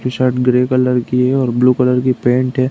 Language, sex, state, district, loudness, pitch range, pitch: Hindi, male, Uttar Pradesh, Deoria, -14 LUFS, 125-130 Hz, 125 Hz